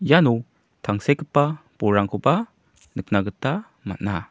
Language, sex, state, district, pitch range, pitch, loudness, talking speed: Garo, male, Meghalaya, South Garo Hills, 100-145 Hz, 110 Hz, -22 LUFS, 85 wpm